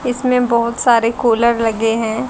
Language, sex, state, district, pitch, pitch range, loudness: Hindi, female, Haryana, Charkhi Dadri, 235 Hz, 225-245 Hz, -15 LUFS